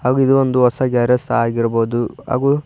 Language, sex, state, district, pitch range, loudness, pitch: Kannada, male, Karnataka, Koppal, 115-135 Hz, -16 LUFS, 125 Hz